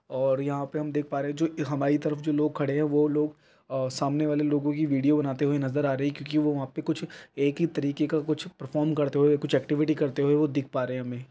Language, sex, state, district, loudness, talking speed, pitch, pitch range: Hindi, male, Chhattisgarh, Raigarh, -27 LUFS, 250 wpm, 150 Hz, 140-150 Hz